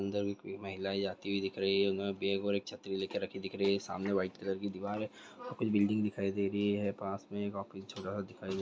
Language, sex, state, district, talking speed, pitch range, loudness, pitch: Hindi, male, West Bengal, Jhargram, 215 wpm, 95-100 Hz, -36 LUFS, 100 Hz